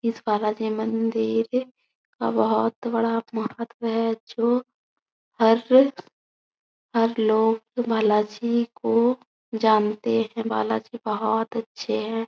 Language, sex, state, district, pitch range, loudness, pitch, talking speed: Hindi, female, Bihar, Supaul, 220-235 Hz, -23 LUFS, 225 Hz, 110 wpm